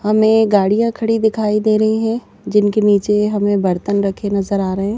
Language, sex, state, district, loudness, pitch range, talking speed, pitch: Hindi, female, Madhya Pradesh, Bhopal, -16 LUFS, 200-220 Hz, 195 wpm, 210 Hz